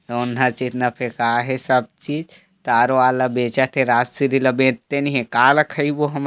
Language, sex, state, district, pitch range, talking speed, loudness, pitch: Chhattisgarhi, male, Chhattisgarh, Korba, 125-140 Hz, 160 wpm, -19 LUFS, 130 Hz